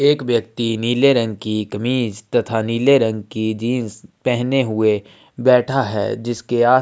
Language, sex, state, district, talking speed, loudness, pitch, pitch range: Hindi, male, Chhattisgarh, Sukma, 160 wpm, -18 LUFS, 120 Hz, 110-125 Hz